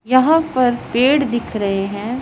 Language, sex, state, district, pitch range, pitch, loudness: Hindi, female, Punjab, Pathankot, 220-260 Hz, 245 Hz, -17 LUFS